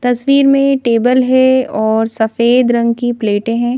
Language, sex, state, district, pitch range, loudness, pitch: Hindi, female, Madhya Pradesh, Bhopal, 230-260 Hz, -12 LUFS, 240 Hz